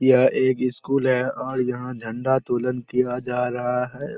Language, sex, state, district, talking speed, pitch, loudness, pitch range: Hindi, male, Bihar, Purnia, 170 wpm, 125 Hz, -23 LUFS, 125-130 Hz